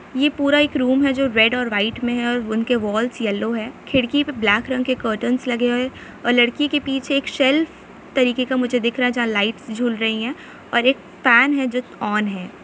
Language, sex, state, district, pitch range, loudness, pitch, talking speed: Hindi, female, Jharkhand, Sahebganj, 225-265 Hz, -19 LUFS, 245 Hz, 230 wpm